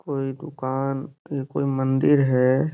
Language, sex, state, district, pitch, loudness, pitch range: Hindi, male, Uttar Pradesh, Gorakhpur, 135 Hz, -23 LUFS, 135-140 Hz